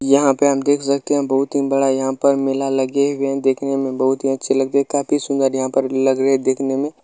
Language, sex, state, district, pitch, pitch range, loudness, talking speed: Hindi, male, Bihar, Muzaffarpur, 135 Hz, 135-140 Hz, -18 LUFS, 275 wpm